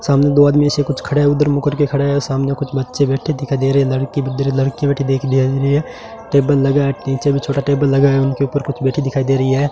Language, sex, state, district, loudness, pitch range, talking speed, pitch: Hindi, male, Rajasthan, Bikaner, -16 LUFS, 135-145 Hz, 240 wpm, 140 Hz